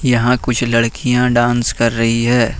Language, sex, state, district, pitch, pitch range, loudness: Hindi, male, Jharkhand, Ranchi, 120 Hz, 115-125 Hz, -15 LUFS